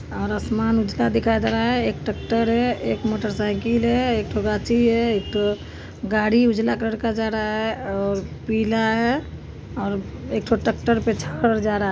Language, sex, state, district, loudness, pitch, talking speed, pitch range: Maithili, female, Bihar, Supaul, -22 LUFS, 225 Hz, 190 wpm, 215-230 Hz